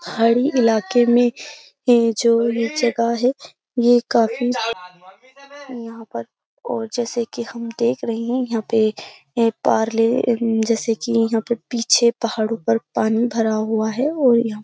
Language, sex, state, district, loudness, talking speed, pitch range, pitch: Hindi, female, Uttar Pradesh, Jyotiba Phule Nagar, -19 LUFS, 150 wpm, 225-240 Hz, 230 Hz